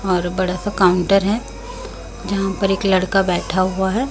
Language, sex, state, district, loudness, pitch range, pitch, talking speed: Hindi, female, Chhattisgarh, Raipur, -18 LUFS, 185-200 Hz, 195 Hz, 175 wpm